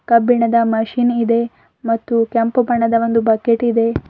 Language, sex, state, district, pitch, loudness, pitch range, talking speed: Kannada, female, Karnataka, Bidar, 230 Hz, -16 LUFS, 230-235 Hz, 130 wpm